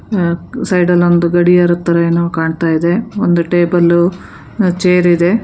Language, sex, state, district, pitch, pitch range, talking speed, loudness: Kannada, female, Karnataka, Bangalore, 175 Hz, 170-180 Hz, 155 wpm, -12 LUFS